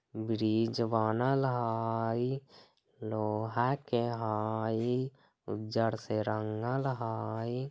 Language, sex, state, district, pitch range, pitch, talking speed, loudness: Bajjika, male, Bihar, Vaishali, 110-125 Hz, 115 Hz, 80 wpm, -33 LUFS